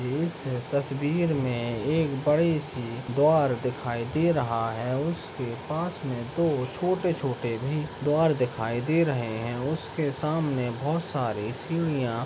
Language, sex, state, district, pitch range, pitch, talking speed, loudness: Hindi, male, Chhattisgarh, Jashpur, 120-155 Hz, 140 Hz, 135 wpm, -27 LUFS